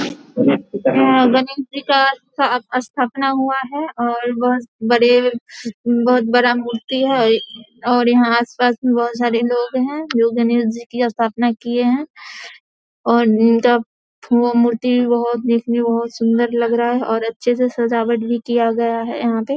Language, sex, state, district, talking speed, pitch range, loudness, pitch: Hindi, female, Bihar, Samastipur, 155 wpm, 235-250 Hz, -17 LUFS, 240 Hz